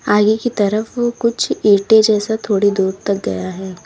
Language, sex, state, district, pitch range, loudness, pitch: Hindi, female, Uttar Pradesh, Lalitpur, 200-220 Hz, -16 LUFS, 210 Hz